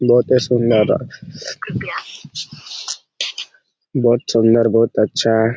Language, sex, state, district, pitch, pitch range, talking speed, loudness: Hindi, male, Bihar, Saran, 115 Hz, 115-120 Hz, 75 wpm, -17 LUFS